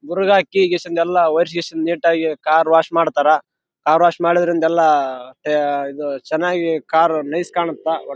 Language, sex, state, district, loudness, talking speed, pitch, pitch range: Kannada, male, Karnataka, Raichur, -17 LUFS, 75 wpm, 165 Hz, 155-170 Hz